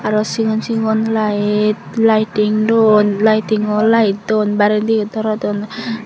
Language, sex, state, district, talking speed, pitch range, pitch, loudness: Chakma, female, Tripura, Dhalai, 120 wpm, 210-220 Hz, 215 Hz, -15 LUFS